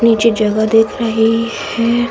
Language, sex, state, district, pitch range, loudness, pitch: Hindi, female, Bihar, Jahanabad, 225-230 Hz, -14 LUFS, 230 Hz